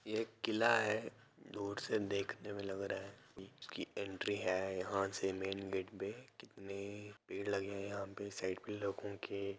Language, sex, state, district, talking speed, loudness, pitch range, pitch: Hindi, male, Bihar, Begusarai, 180 wpm, -41 LUFS, 95-105 Hz, 100 Hz